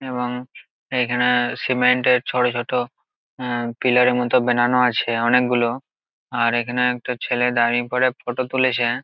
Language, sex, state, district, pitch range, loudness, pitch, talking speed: Bengali, male, West Bengal, Jalpaiguri, 120-125 Hz, -20 LUFS, 125 Hz, 140 wpm